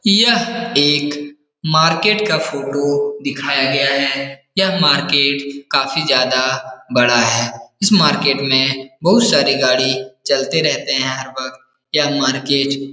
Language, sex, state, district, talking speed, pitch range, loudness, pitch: Hindi, male, Bihar, Jahanabad, 130 wpm, 130-155 Hz, -15 LUFS, 140 Hz